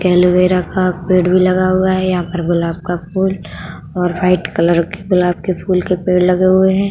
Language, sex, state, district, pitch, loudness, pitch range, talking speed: Hindi, female, Uttar Pradesh, Budaun, 180 Hz, -14 LUFS, 175-185 Hz, 210 wpm